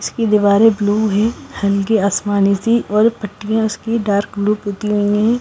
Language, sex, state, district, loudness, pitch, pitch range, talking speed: Hindi, female, Punjab, Kapurthala, -16 LUFS, 210 Hz, 205-220 Hz, 155 wpm